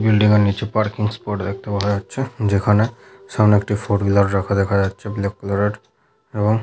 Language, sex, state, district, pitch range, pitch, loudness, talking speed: Bengali, male, West Bengal, Paschim Medinipur, 100-105 Hz, 105 Hz, -19 LUFS, 200 wpm